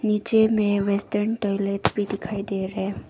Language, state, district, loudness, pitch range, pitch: Hindi, Arunachal Pradesh, Papum Pare, -23 LUFS, 200-210 Hz, 205 Hz